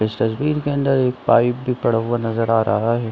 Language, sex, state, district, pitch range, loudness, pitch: Hindi, male, Jharkhand, Sahebganj, 115-130 Hz, -19 LUFS, 120 Hz